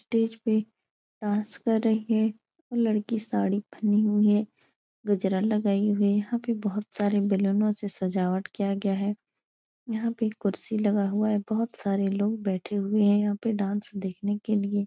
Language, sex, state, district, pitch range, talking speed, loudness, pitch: Hindi, female, Uttar Pradesh, Etah, 200-220 Hz, 175 wpm, -27 LUFS, 210 Hz